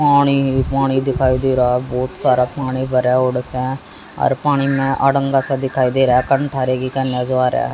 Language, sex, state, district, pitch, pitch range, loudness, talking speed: Hindi, female, Haryana, Jhajjar, 130 Hz, 130-135 Hz, -17 LUFS, 170 wpm